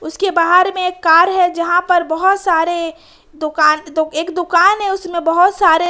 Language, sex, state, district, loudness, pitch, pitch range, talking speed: Hindi, female, Jharkhand, Ranchi, -14 LUFS, 345 Hz, 325-360 Hz, 175 wpm